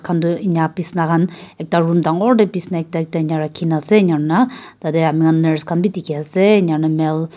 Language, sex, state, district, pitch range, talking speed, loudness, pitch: Nagamese, female, Nagaland, Kohima, 160-180 Hz, 235 wpm, -17 LUFS, 165 Hz